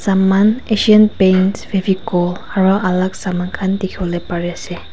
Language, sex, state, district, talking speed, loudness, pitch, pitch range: Nagamese, female, Nagaland, Kohima, 135 wpm, -15 LUFS, 190 Hz, 180-200 Hz